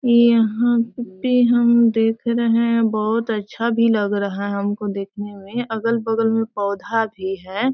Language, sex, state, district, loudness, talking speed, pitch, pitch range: Hindi, female, Bihar, Sitamarhi, -19 LUFS, 160 wpm, 225 Hz, 205-235 Hz